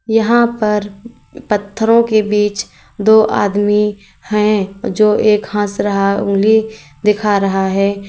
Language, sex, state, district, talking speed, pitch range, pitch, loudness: Hindi, female, Uttar Pradesh, Lalitpur, 120 wpm, 200-220 Hz, 210 Hz, -14 LUFS